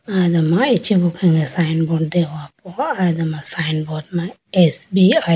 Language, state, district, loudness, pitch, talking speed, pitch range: Idu Mishmi, Arunachal Pradesh, Lower Dibang Valley, -17 LUFS, 170 Hz, 110 wpm, 160-185 Hz